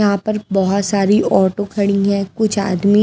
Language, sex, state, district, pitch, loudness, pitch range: Hindi, female, Himachal Pradesh, Shimla, 200 Hz, -16 LUFS, 195-210 Hz